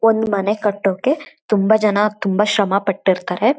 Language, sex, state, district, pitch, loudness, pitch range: Kannada, female, Karnataka, Shimoga, 210 Hz, -18 LUFS, 195-220 Hz